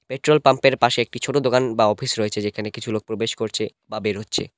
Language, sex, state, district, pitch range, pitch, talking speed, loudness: Bengali, male, West Bengal, Cooch Behar, 105-130 Hz, 115 Hz, 225 wpm, -21 LUFS